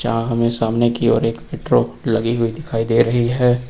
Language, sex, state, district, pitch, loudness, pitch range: Hindi, male, Uttar Pradesh, Lucknow, 115 Hz, -18 LUFS, 115-120 Hz